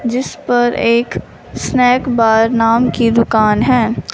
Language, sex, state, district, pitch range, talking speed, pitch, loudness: Hindi, female, Punjab, Fazilka, 225-245 Hz, 130 wpm, 235 Hz, -13 LUFS